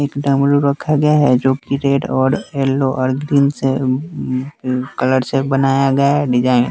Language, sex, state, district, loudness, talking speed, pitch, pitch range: Hindi, male, Bihar, West Champaran, -16 LUFS, 160 wpm, 135 Hz, 130-140 Hz